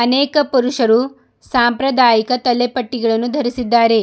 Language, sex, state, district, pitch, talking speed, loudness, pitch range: Kannada, female, Karnataka, Bidar, 245 Hz, 75 wpm, -15 LUFS, 235-255 Hz